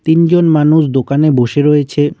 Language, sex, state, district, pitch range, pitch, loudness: Bengali, male, West Bengal, Cooch Behar, 145-160 Hz, 150 Hz, -11 LUFS